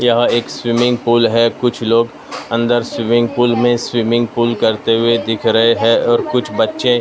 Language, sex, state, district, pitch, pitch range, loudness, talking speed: Hindi, male, Maharashtra, Mumbai Suburban, 120 Hz, 115-120 Hz, -14 LUFS, 180 wpm